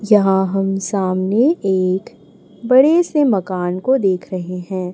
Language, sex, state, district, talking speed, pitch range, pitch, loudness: Hindi, male, Chhattisgarh, Raipur, 135 wpm, 185-235 Hz, 195 Hz, -17 LUFS